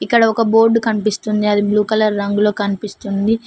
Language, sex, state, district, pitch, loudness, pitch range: Telugu, female, Telangana, Mahabubabad, 210 Hz, -16 LUFS, 205-225 Hz